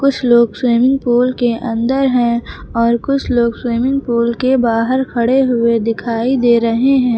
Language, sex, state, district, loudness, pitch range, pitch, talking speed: Hindi, female, Uttar Pradesh, Lucknow, -14 LUFS, 235-260 Hz, 240 Hz, 165 wpm